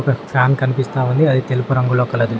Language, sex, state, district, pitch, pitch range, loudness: Telugu, male, Telangana, Mahabubabad, 130 Hz, 125-135 Hz, -17 LUFS